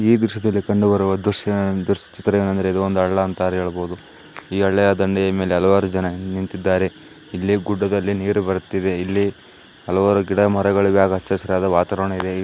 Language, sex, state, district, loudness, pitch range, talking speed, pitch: Kannada, male, Karnataka, Dakshina Kannada, -19 LUFS, 95-100 Hz, 150 wpm, 95 Hz